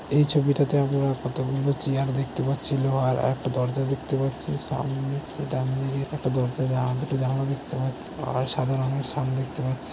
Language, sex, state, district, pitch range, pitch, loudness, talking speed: Bengali, male, West Bengal, Jalpaiguri, 130-140 Hz, 135 Hz, -26 LUFS, 175 wpm